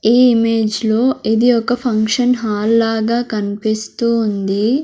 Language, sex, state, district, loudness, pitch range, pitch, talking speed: Telugu, female, Andhra Pradesh, Sri Satya Sai, -15 LUFS, 215-240 Hz, 225 Hz, 125 wpm